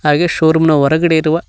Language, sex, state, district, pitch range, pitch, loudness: Kannada, male, Karnataka, Koppal, 155-160 Hz, 160 Hz, -12 LUFS